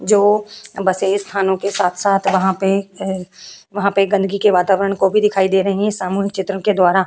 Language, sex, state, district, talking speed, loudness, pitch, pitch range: Hindi, female, Uttar Pradesh, Hamirpur, 205 wpm, -17 LUFS, 195 Hz, 190-200 Hz